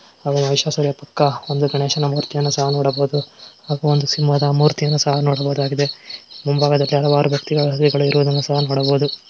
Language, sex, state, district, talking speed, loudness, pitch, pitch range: Kannada, male, Karnataka, Mysore, 115 wpm, -18 LUFS, 145 Hz, 140-145 Hz